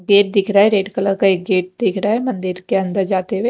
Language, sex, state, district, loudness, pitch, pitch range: Hindi, female, Punjab, Kapurthala, -17 LUFS, 195 Hz, 190-205 Hz